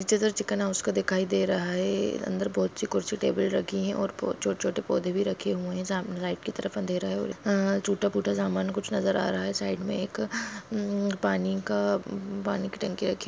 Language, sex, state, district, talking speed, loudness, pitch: Hindi, female, Bihar, Jahanabad, 100 wpm, -29 LUFS, 190 Hz